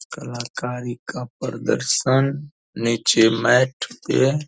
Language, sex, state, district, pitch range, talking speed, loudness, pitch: Hindi, male, Bihar, Purnia, 120-135 Hz, 95 wpm, -21 LUFS, 125 Hz